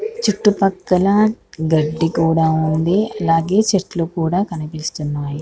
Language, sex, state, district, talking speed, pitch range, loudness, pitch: Telugu, female, Andhra Pradesh, Krishna, 100 wpm, 160-200 Hz, -17 LUFS, 165 Hz